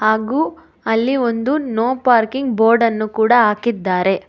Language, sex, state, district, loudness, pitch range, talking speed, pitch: Kannada, female, Karnataka, Bangalore, -16 LUFS, 220-250 Hz, 110 wpm, 230 Hz